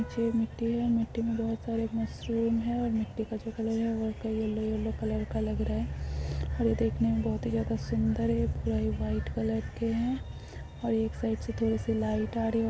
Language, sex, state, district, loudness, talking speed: Hindi, female, Chhattisgarh, Bilaspur, -31 LUFS, 180 wpm